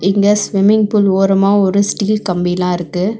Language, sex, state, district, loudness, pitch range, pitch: Tamil, female, Tamil Nadu, Chennai, -13 LUFS, 185-210 Hz, 200 Hz